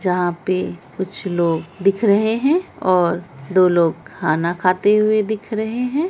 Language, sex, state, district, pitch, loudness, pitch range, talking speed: Hindi, female, Bihar, Araria, 185 Hz, -19 LUFS, 175-215 Hz, 155 wpm